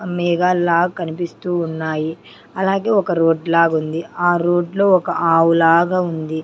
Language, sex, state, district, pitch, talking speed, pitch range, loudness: Telugu, female, Andhra Pradesh, Sri Satya Sai, 170 Hz, 130 wpm, 165-180 Hz, -17 LUFS